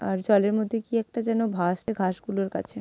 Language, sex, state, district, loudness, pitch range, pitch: Bengali, female, West Bengal, Malda, -26 LUFS, 190-225 Hz, 210 Hz